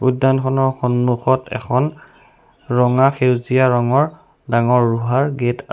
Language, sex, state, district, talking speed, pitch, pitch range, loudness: Assamese, male, Assam, Sonitpur, 105 wpm, 130 Hz, 125-135 Hz, -17 LUFS